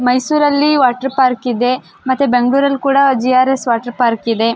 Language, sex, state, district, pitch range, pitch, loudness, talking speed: Kannada, female, Karnataka, Belgaum, 245-275 Hz, 255 Hz, -14 LUFS, 185 wpm